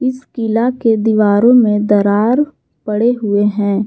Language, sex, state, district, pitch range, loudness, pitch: Hindi, female, Jharkhand, Garhwa, 205-245 Hz, -13 LUFS, 220 Hz